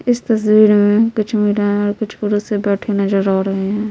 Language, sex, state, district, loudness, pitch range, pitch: Hindi, female, Bihar, Patna, -15 LUFS, 205-215 Hz, 210 Hz